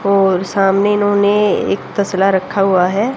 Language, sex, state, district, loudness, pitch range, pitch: Hindi, female, Haryana, Jhajjar, -14 LUFS, 195-205 Hz, 200 Hz